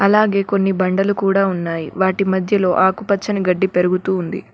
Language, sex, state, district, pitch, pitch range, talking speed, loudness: Telugu, female, Telangana, Mahabubabad, 190 Hz, 185-200 Hz, 145 wpm, -17 LUFS